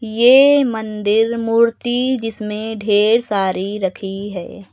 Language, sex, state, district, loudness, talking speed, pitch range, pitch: Hindi, male, Uttar Pradesh, Lucknow, -16 LUFS, 100 wpm, 205-235 Hz, 220 Hz